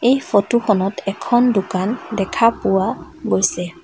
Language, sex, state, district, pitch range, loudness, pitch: Assamese, female, Assam, Sonitpur, 190-235 Hz, -18 LUFS, 200 Hz